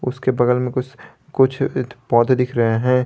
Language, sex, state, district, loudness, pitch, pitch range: Hindi, male, Jharkhand, Garhwa, -19 LUFS, 125 Hz, 120-130 Hz